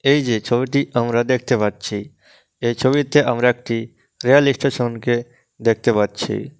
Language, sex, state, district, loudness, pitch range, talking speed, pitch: Bengali, male, West Bengal, Malda, -19 LUFS, 115-135 Hz, 135 wpm, 120 Hz